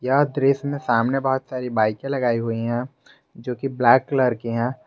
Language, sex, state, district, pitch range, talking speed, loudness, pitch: Hindi, male, Jharkhand, Garhwa, 115-135 Hz, 195 wpm, -22 LUFS, 125 Hz